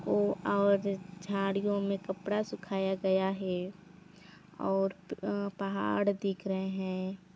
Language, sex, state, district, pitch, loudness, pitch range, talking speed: Chhattisgarhi, female, Chhattisgarh, Sarguja, 190 Hz, -32 LUFS, 185-200 Hz, 115 wpm